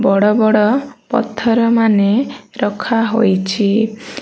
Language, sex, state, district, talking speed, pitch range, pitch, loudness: Odia, female, Odisha, Malkangiri, 85 wpm, 210-230 Hz, 220 Hz, -15 LUFS